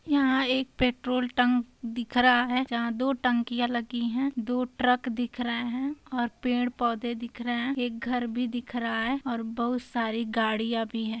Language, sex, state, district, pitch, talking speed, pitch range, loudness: Hindi, female, Uttar Pradesh, Hamirpur, 245 Hz, 185 wpm, 235-250 Hz, -28 LUFS